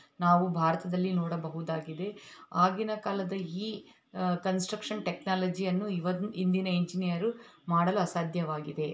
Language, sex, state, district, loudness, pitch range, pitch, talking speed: Kannada, female, Karnataka, Belgaum, -31 LUFS, 170-195 Hz, 180 Hz, 95 wpm